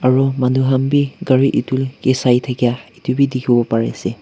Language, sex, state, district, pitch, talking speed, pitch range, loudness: Nagamese, male, Nagaland, Kohima, 130 Hz, 170 wpm, 125-135 Hz, -16 LUFS